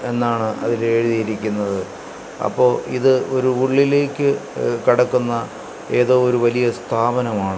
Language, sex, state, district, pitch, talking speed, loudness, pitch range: Malayalam, male, Kerala, Kasaragod, 120 Hz, 95 wpm, -18 LUFS, 110-125 Hz